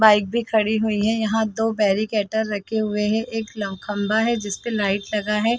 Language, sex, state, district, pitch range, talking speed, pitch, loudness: Hindi, female, Chhattisgarh, Bilaspur, 205-225 Hz, 205 wpm, 215 Hz, -22 LUFS